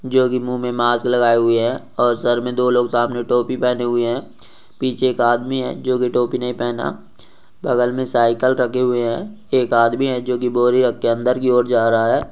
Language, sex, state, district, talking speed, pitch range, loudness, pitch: Hindi, male, Rajasthan, Nagaur, 230 wpm, 120-125 Hz, -18 LUFS, 125 Hz